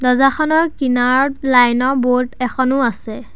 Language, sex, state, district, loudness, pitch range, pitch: Assamese, male, Assam, Sonitpur, -15 LUFS, 250-270 Hz, 255 Hz